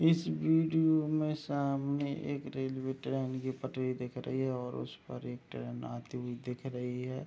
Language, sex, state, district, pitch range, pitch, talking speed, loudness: Hindi, male, Bihar, Madhepura, 125-140 Hz, 130 Hz, 175 wpm, -35 LUFS